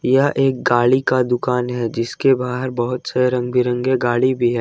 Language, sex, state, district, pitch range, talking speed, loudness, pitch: Hindi, male, Jharkhand, Ranchi, 120-130 Hz, 195 wpm, -18 LUFS, 125 Hz